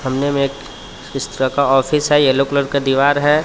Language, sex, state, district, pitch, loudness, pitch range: Hindi, male, Jharkhand, Palamu, 140 Hz, -16 LUFS, 135-145 Hz